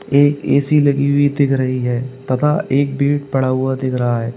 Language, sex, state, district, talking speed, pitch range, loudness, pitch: Hindi, male, Uttar Pradesh, Lalitpur, 205 wpm, 130-145 Hz, -16 LUFS, 140 Hz